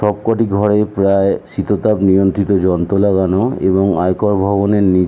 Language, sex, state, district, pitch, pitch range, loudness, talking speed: Bengali, male, West Bengal, North 24 Parganas, 100 Hz, 95-105 Hz, -14 LUFS, 140 wpm